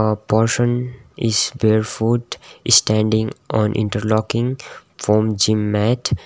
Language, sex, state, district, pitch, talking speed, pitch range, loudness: English, male, Sikkim, Gangtok, 110 Hz, 95 wpm, 110-120 Hz, -18 LUFS